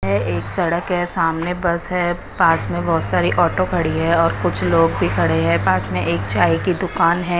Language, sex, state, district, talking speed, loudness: Hindi, female, Odisha, Nuapada, 220 wpm, -18 LUFS